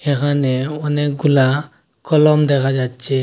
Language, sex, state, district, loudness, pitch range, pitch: Bengali, male, Assam, Hailakandi, -16 LUFS, 135-150 Hz, 145 Hz